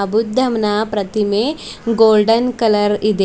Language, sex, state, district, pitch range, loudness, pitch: Kannada, female, Karnataka, Bidar, 210-230 Hz, -16 LUFS, 215 Hz